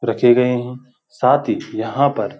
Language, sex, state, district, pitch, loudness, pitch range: Hindi, male, Uttarakhand, Uttarkashi, 125 Hz, -17 LUFS, 120-125 Hz